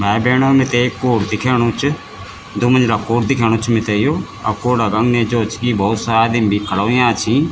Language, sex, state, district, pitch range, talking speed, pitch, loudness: Garhwali, male, Uttarakhand, Tehri Garhwal, 110-125 Hz, 210 wpm, 115 Hz, -15 LUFS